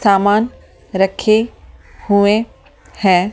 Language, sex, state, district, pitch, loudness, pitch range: Hindi, female, Delhi, New Delhi, 205 Hz, -15 LUFS, 195-215 Hz